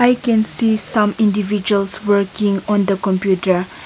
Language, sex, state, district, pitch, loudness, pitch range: English, female, Nagaland, Kohima, 205 Hz, -16 LUFS, 195-215 Hz